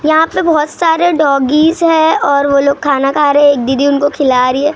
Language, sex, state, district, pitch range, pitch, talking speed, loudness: Hindi, female, Maharashtra, Gondia, 280-315 Hz, 290 Hz, 240 wpm, -11 LUFS